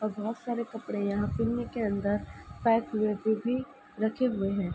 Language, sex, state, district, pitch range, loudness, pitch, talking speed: Hindi, female, Uttar Pradesh, Ghazipur, 210-235 Hz, -30 LUFS, 220 Hz, 190 wpm